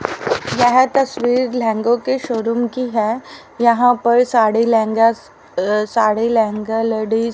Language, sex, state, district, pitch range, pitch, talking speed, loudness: Hindi, female, Haryana, Rohtak, 225-245 Hz, 230 Hz, 130 wpm, -16 LUFS